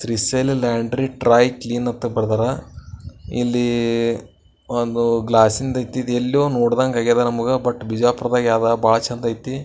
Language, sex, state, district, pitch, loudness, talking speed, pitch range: Kannada, male, Karnataka, Bijapur, 120 Hz, -19 LUFS, 125 wpm, 115-125 Hz